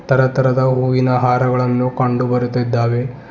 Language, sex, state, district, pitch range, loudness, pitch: Kannada, male, Karnataka, Bidar, 125-130 Hz, -16 LUFS, 125 Hz